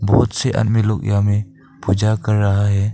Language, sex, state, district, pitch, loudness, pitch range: Hindi, male, Arunachal Pradesh, Papum Pare, 105 Hz, -18 LUFS, 100-110 Hz